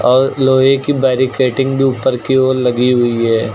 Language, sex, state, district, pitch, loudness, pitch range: Hindi, male, Uttar Pradesh, Lucknow, 130 Hz, -13 LUFS, 125-135 Hz